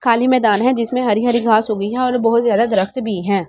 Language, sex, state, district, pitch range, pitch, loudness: Hindi, female, Delhi, New Delhi, 210-245 Hz, 235 Hz, -16 LUFS